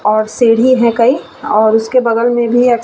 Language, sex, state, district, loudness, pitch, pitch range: Hindi, female, Bihar, Vaishali, -12 LUFS, 235 Hz, 220-245 Hz